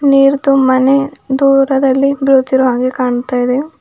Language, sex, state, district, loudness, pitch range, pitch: Kannada, female, Karnataka, Bidar, -12 LUFS, 260-275 Hz, 270 Hz